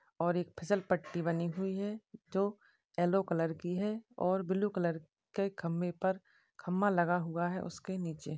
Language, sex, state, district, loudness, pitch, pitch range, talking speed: Hindi, female, Maharashtra, Dhule, -35 LUFS, 180 Hz, 170-195 Hz, 165 wpm